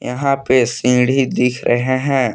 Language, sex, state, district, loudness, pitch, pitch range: Hindi, male, Jharkhand, Palamu, -16 LUFS, 125 Hz, 125-135 Hz